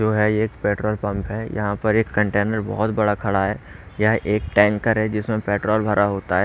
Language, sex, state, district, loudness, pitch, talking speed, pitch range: Hindi, male, Haryana, Rohtak, -21 LUFS, 105 Hz, 225 wpm, 100-110 Hz